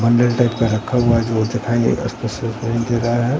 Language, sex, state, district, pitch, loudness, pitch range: Hindi, male, Bihar, Katihar, 115 Hz, -18 LUFS, 115-120 Hz